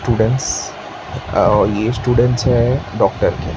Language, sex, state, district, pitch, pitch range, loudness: Hindi, male, Maharashtra, Mumbai Suburban, 120 Hz, 115-125 Hz, -16 LUFS